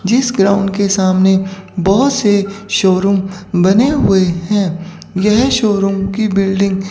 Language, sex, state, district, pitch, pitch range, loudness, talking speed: Hindi, female, Chandigarh, Chandigarh, 195 Hz, 190-205 Hz, -13 LUFS, 130 wpm